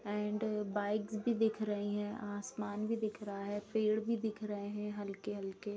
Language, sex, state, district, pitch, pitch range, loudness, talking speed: Hindi, female, Bihar, Gopalganj, 210 Hz, 205-215 Hz, -38 LUFS, 175 wpm